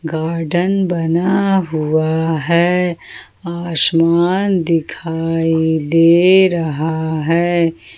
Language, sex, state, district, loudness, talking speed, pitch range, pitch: Hindi, female, Jharkhand, Ranchi, -15 LUFS, 70 wpm, 160-175 Hz, 165 Hz